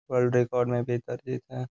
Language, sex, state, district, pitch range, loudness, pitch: Hindi, male, Uttar Pradesh, Gorakhpur, 120-125 Hz, -28 LUFS, 125 Hz